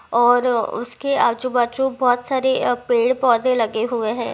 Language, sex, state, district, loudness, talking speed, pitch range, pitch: Hindi, female, Uttar Pradesh, Hamirpur, -19 LUFS, 165 wpm, 235-255 Hz, 245 Hz